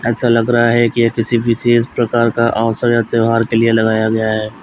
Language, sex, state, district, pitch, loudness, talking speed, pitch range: Hindi, male, Uttar Pradesh, Lalitpur, 115 Hz, -14 LUFS, 235 wpm, 115-120 Hz